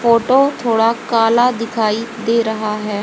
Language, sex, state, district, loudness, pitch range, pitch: Hindi, female, Haryana, Rohtak, -16 LUFS, 220-235 Hz, 230 Hz